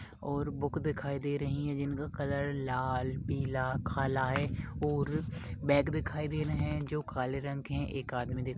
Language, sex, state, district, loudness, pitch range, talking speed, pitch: Hindi, male, Goa, North and South Goa, -34 LUFS, 130-145 Hz, 190 wpm, 140 Hz